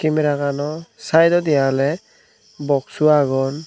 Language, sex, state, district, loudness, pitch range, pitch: Chakma, male, Tripura, Unakoti, -18 LUFS, 140-165 Hz, 150 Hz